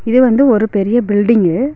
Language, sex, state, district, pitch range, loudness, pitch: Tamil, female, Tamil Nadu, Nilgiris, 205-255 Hz, -12 LUFS, 230 Hz